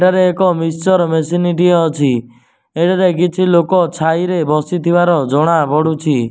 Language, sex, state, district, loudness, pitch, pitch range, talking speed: Odia, male, Odisha, Nuapada, -14 LUFS, 170 Hz, 155-180 Hz, 125 wpm